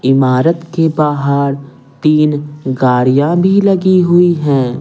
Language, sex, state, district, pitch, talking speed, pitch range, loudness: Hindi, male, Bihar, Patna, 145 Hz, 110 wpm, 135-170 Hz, -12 LUFS